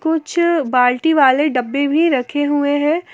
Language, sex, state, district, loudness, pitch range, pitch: Hindi, female, Jharkhand, Garhwa, -16 LUFS, 275-320 Hz, 290 Hz